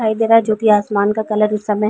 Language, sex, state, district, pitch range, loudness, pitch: Hindi, female, Uttar Pradesh, Varanasi, 210-220 Hz, -15 LUFS, 215 Hz